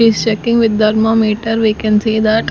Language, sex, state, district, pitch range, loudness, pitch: English, female, Maharashtra, Gondia, 215-225 Hz, -13 LUFS, 220 Hz